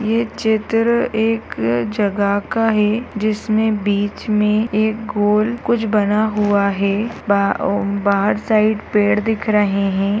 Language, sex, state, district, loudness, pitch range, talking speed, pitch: Hindi, female, Bihar, Madhepura, -17 LUFS, 205-220 Hz, 135 wpm, 210 Hz